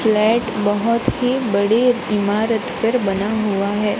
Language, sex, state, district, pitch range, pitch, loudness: Hindi, female, Gujarat, Gandhinagar, 205-230 Hz, 220 Hz, -18 LUFS